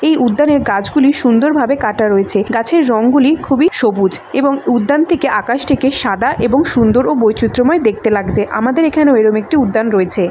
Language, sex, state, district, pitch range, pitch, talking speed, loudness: Bengali, female, West Bengal, Dakshin Dinajpur, 220-280 Hz, 245 Hz, 150 wpm, -13 LUFS